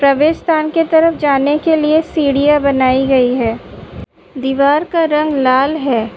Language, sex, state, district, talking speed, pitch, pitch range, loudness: Hindi, female, Uttar Pradesh, Budaun, 155 wpm, 290 Hz, 265-315 Hz, -13 LUFS